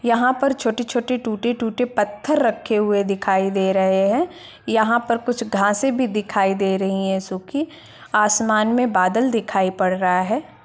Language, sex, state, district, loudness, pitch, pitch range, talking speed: Hindi, female, Uttar Pradesh, Etah, -20 LUFS, 220 Hz, 195-245 Hz, 160 wpm